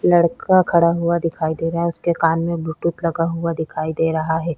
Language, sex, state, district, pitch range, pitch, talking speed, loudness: Hindi, female, Chhattisgarh, Sukma, 160-170 Hz, 165 Hz, 225 wpm, -19 LUFS